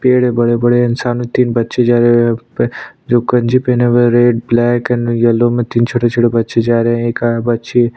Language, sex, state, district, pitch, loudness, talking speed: Hindi, male, Uttarakhand, Tehri Garhwal, 120 Hz, -13 LUFS, 210 wpm